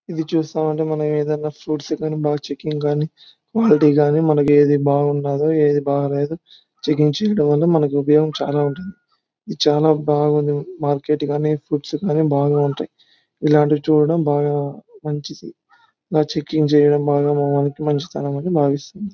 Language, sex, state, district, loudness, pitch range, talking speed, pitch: Telugu, male, Andhra Pradesh, Anantapur, -18 LUFS, 145-155 Hz, 145 wpm, 150 Hz